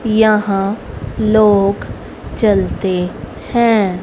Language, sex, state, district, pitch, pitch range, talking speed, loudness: Hindi, female, Haryana, Rohtak, 210 Hz, 195-220 Hz, 60 wpm, -15 LUFS